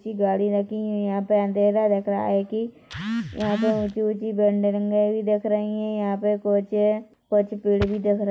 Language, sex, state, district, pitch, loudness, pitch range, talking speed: Hindi, male, Chhattisgarh, Korba, 210 Hz, -23 LUFS, 205-215 Hz, 195 wpm